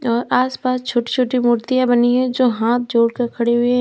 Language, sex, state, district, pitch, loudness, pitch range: Hindi, female, Uttar Pradesh, Lalitpur, 245 Hz, -17 LUFS, 235-255 Hz